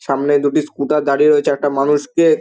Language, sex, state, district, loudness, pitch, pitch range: Bengali, male, West Bengal, Dakshin Dinajpur, -15 LUFS, 145 Hz, 140-150 Hz